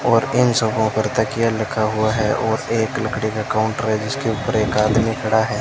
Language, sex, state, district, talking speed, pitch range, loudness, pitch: Hindi, male, Rajasthan, Bikaner, 215 wpm, 110-115 Hz, -19 LUFS, 110 Hz